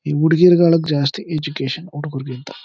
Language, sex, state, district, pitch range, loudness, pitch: Kannada, male, Karnataka, Chamarajanagar, 140-165 Hz, -17 LUFS, 150 Hz